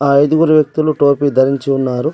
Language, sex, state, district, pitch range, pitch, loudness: Telugu, male, Telangana, Adilabad, 135-155 Hz, 140 Hz, -13 LUFS